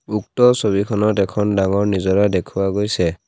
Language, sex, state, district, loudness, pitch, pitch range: Assamese, male, Assam, Kamrup Metropolitan, -18 LUFS, 100 Hz, 95-105 Hz